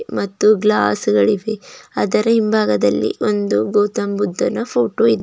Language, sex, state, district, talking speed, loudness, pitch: Kannada, female, Karnataka, Bidar, 125 wpm, -17 LUFS, 190 Hz